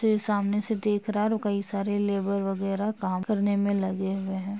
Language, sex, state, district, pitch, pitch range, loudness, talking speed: Hindi, female, Uttar Pradesh, Jalaun, 200 Hz, 195-210 Hz, -27 LUFS, 210 wpm